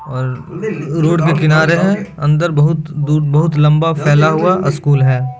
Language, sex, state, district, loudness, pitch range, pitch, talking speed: Hindi, male, Bihar, Begusarai, -13 LUFS, 145-165 Hz, 155 Hz, 155 wpm